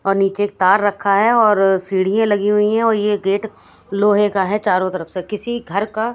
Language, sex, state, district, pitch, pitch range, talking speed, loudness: Hindi, female, Haryana, Charkhi Dadri, 205 Hz, 195-210 Hz, 215 wpm, -17 LUFS